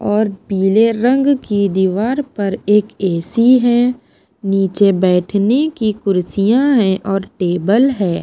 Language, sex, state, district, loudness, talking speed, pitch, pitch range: Hindi, female, Punjab, Pathankot, -15 LUFS, 130 wpm, 205 Hz, 195-240 Hz